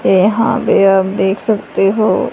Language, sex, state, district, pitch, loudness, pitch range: Hindi, female, Haryana, Charkhi Dadri, 195 Hz, -13 LUFS, 190-215 Hz